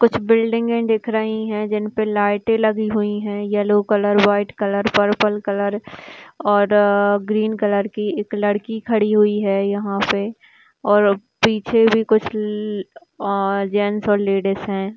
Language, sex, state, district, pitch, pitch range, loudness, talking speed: Hindi, female, Rajasthan, Churu, 210 Hz, 205-220 Hz, -19 LUFS, 150 wpm